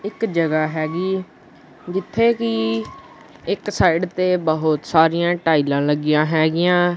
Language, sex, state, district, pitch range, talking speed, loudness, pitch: Punjabi, male, Punjab, Kapurthala, 155-180 Hz, 110 wpm, -19 LUFS, 165 Hz